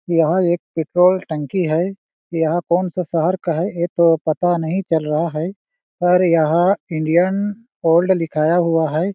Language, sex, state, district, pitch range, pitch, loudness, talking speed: Hindi, male, Chhattisgarh, Balrampur, 160-185 Hz, 170 Hz, -18 LUFS, 165 wpm